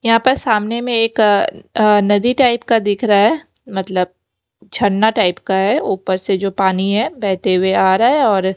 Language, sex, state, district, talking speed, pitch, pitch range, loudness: Hindi, female, Maharashtra, Mumbai Suburban, 195 wpm, 205 Hz, 190-225 Hz, -15 LUFS